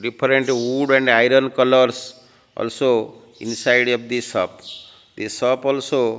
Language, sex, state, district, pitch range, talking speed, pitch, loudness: English, male, Odisha, Malkangiri, 120-135 Hz, 135 wpm, 130 Hz, -18 LUFS